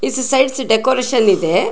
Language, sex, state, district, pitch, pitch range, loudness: Kannada, female, Karnataka, Shimoga, 260 Hz, 220-265 Hz, -15 LUFS